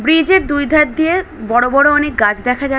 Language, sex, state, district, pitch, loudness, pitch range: Bengali, female, West Bengal, Dakshin Dinajpur, 290 Hz, -13 LUFS, 250-315 Hz